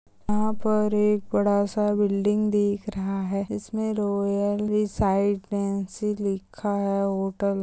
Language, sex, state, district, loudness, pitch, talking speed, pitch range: Hindi, female, Uttar Pradesh, Gorakhpur, -25 LUFS, 205 Hz, 120 wpm, 200-210 Hz